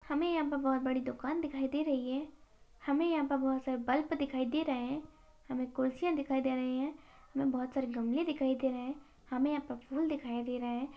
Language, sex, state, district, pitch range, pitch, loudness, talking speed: Hindi, female, Maharashtra, Sindhudurg, 255-295 Hz, 270 Hz, -35 LUFS, 230 wpm